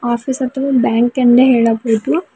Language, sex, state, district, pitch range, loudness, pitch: Kannada, female, Karnataka, Bidar, 235-260 Hz, -13 LUFS, 245 Hz